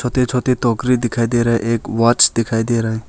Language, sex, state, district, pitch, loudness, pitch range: Hindi, male, Arunachal Pradesh, Longding, 115 Hz, -16 LUFS, 115-125 Hz